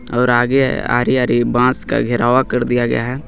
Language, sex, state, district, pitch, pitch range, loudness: Hindi, male, Jharkhand, Garhwa, 125 Hz, 120-125 Hz, -15 LUFS